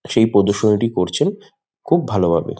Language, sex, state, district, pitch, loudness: Bengali, male, West Bengal, Malda, 110 Hz, -17 LUFS